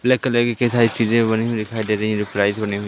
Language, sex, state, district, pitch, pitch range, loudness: Hindi, male, Madhya Pradesh, Katni, 110 Hz, 105-120 Hz, -19 LUFS